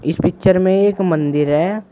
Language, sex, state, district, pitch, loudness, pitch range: Hindi, male, Uttar Pradesh, Shamli, 180 Hz, -15 LUFS, 150-195 Hz